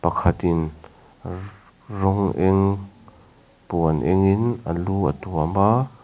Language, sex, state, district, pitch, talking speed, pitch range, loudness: Mizo, male, Mizoram, Aizawl, 95 Hz, 120 wpm, 85-100 Hz, -21 LUFS